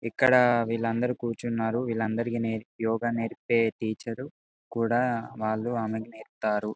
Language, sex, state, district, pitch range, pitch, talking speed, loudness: Telugu, male, Telangana, Karimnagar, 110-120 Hz, 115 Hz, 115 wpm, -28 LUFS